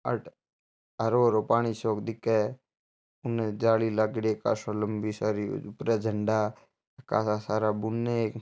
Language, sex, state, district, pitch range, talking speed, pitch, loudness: Marwari, male, Rajasthan, Churu, 105-115 Hz, 165 wpm, 110 Hz, -28 LUFS